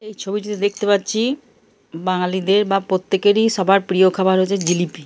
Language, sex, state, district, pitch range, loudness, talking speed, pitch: Bengali, male, Jharkhand, Jamtara, 185-205 Hz, -18 LUFS, 140 wpm, 195 Hz